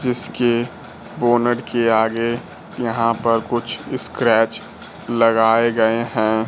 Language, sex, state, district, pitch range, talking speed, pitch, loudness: Hindi, male, Bihar, Kaimur, 115-120 Hz, 100 wpm, 115 Hz, -19 LUFS